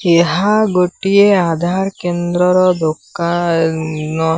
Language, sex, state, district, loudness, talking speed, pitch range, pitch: Odia, male, Odisha, Sambalpur, -14 LUFS, 70 wpm, 165-190 Hz, 175 Hz